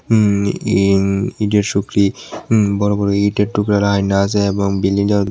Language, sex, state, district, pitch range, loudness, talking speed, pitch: Bengali, male, Tripura, West Tripura, 100-105 Hz, -16 LUFS, 170 wpm, 100 Hz